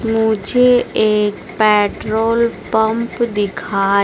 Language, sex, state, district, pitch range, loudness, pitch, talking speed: Hindi, female, Madhya Pradesh, Dhar, 205-230 Hz, -16 LUFS, 220 Hz, 75 wpm